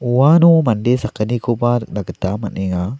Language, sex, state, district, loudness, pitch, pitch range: Garo, male, Meghalaya, South Garo Hills, -16 LUFS, 120 Hz, 105-125 Hz